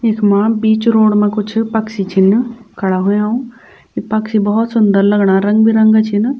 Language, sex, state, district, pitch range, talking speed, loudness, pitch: Garhwali, female, Uttarakhand, Tehri Garhwal, 205-225 Hz, 160 wpm, -13 LUFS, 215 Hz